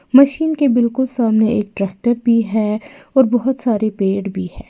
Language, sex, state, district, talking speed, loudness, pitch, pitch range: Hindi, female, Uttar Pradesh, Lalitpur, 180 wpm, -16 LUFS, 235 Hz, 210-260 Hz